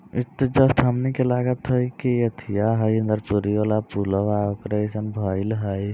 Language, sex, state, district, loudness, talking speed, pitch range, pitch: Maithili, male, Bihar, Samastipur, -22 LUFS, 170 wpm, 105-125 Hz, 110 Hz